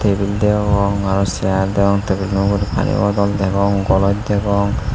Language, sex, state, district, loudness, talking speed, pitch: Chakma, male, Tripura, Unakoti, -17 LUFS, 135 wpm, 100 Hz